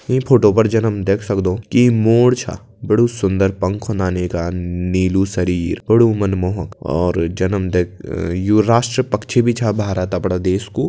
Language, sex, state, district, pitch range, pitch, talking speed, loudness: Kumaoni, male, Uttarakhand, Tehri Garhwal, 90-115 Hz, 100 Hz, 175 wpm, -17 LUFS